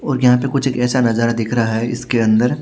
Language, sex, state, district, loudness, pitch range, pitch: Hindi, male, Chhattisgarh, Raipur, -16 LUFS, 115-130 Hz, 120 Hz